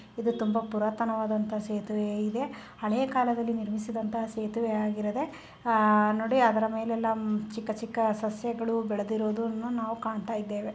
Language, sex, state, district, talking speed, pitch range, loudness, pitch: Kannada, female, Karnataka, Chamarajanagar, 100 wpm, 215-230 Hz, -29 LUFS, 220 Hz